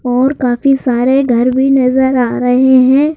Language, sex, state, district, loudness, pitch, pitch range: Hindi, male, Madhya Pradesh, Bhopal, -11 LUFS, 260 Hz, 250-270 Hz